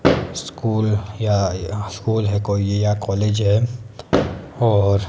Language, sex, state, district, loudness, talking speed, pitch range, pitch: Hindi, male, Himachal Pradesh, Shimla, -20 LUFS, 120 wpm, 100-110 Hz, 105 Hz